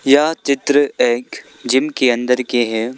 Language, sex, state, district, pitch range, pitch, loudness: Hindi, male, Arunachal Pradesh, Lower Dibang Valley, 120-140 Hz, 130 Hz, -16 LUFS